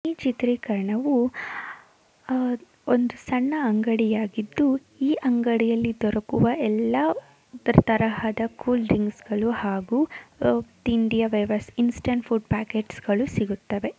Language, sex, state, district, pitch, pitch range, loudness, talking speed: Kannada, female, Karnataka, Mysore, 230 Hz, 215-250 Hz, -24 LUFS, 75 wpm